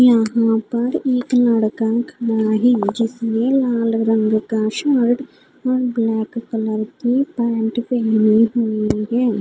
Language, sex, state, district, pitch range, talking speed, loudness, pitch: Hindi, female, Odisha, Khordha, 220-245 Hz, 120 wpm, -18 LUFS, 230 Hz